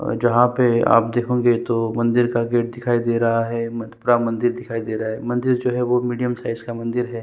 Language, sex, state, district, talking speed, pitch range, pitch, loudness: Hindi, male, Chhattisgarh, Sukma, 240 wpm, 115-120 Hz, 120 Hz, -20 LUFS